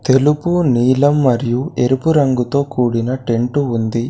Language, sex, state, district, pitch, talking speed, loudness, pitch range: Telugu, male, Telangana, Komaram Bheem, 130 Hz, 115 wpm, -15 LUFS, 120-145 Hz